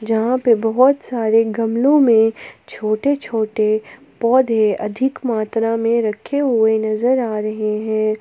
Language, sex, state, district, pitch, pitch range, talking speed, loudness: Hindi, female, Jharkhand, Palamu, 225 Hz, 215-245 Hz, 130 wpm, -17 LUFS